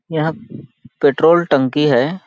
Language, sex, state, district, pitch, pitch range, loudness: Hindi, male, Chhattisgarh, Balrampur, 155 Hz, 145-165 Hz, -15 LUFS